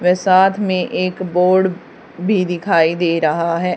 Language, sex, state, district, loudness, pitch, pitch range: Hindi, female, Haryana, Charkhi Dadri, -16 LUFS, 180 Hz, 170-190 Hz